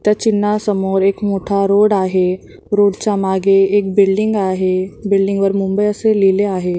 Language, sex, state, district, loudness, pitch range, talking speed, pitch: Marathi, female, Maharashtra, Mumbai Suburban, -15 LUFS, 190-205 Hz, 160 wpm, 195 Hz